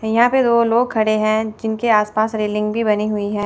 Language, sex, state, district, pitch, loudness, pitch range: Hindi, female, Chandigarh, Chandigarh, 220 Hz, -17 LUFS, 210-230 Hz